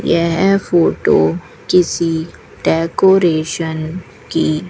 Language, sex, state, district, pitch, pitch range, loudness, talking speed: Hindi, female, Rajasthan, Bikaner, 165 Hz, 160-180 Hz, -15 LUFS, 65 wpm